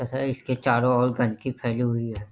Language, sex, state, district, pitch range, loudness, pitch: Hindi, male, Bihar, Jahanabad, 120-130 Hz, -25 LUFS, 125 Hz